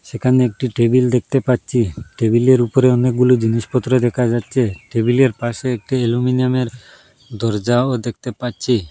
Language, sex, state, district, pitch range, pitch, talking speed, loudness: Bengali, male, Assam, Hailakandi, 115-125 Hz, 125 Hz, 120 wpm, -17 LUFS